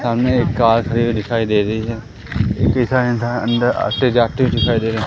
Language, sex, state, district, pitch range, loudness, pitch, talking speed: Hindi, male, Madhya Pradesh, Katni, 110-120 Hz, -17 LUFS, 115 Hz, 210 wpm